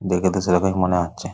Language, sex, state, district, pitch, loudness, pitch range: Bengali, male, West Bengal, Paschim Medinipur, 90 Hz, -20 LUFS, 90-95 Hz